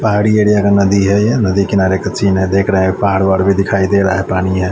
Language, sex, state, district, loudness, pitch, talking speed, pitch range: Hindi, male, Haryana, Charkhi Dadri, -13 LUFS, 100 Hz, 280 wpm, 95-100 Hz